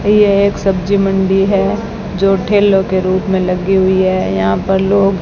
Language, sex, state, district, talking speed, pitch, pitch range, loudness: Hindi, female, Rajasthan, Bikaner, 185 wpm, 195 Hz, 190-200 Hz, -13 LUFS